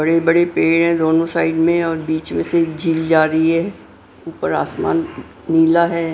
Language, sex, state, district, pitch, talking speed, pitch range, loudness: Hindi, female, Punjab, Pathankot, 165 Hz, 185 wpm, 160-170 Hz, -16 LUFS